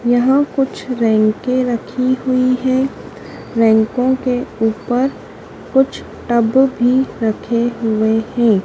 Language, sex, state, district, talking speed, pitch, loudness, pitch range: Hindi, female, Madhya Pradesh, Dhar, 105 wpm, 245 Hz, -16 LUFS, 225-255 Hz